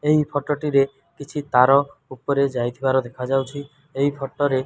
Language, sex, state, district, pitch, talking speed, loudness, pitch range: Odia, male, Odisha, Malkangiri, 140 Hz, 155 wpm, -21 LUFS, 130-145 Hz